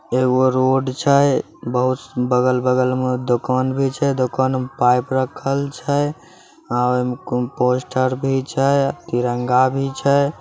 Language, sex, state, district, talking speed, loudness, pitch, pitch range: Maithili, male, Bihar, Samastipur, 125 wpm, -19 LUFS, 130 Hz, 125-135 Hz